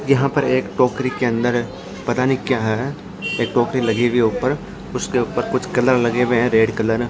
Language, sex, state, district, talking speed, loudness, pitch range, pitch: Hindi, male, Maharashtra, Washim, 220 wpm, -19 LUFS, 115-130 Hz, 120 Hz